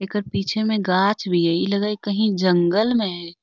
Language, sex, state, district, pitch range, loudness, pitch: Magahi, female, Bihar, Lakhisarai, 180-210 Hz, -20 LUFS, 200 Hz